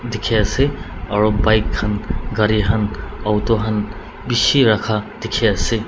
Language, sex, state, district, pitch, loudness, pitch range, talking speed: Nagamese, male, Nagaland, Dimapur, 110 Hz, -18 LUFS, 105-115 Hz, 135 wpm